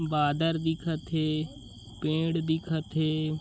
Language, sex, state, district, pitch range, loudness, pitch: Chhattisgarhi, male, Chhattisgarh, Bilaspur, 155-160 Hz, -29 LUFS, 155 Hz